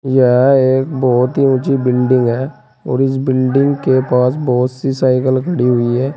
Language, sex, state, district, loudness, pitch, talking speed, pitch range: Hindi, male, Uttar Pradesh, Saharanpur, -14 LUFS, 130 Hz, 175 wpm, 125-135 Hz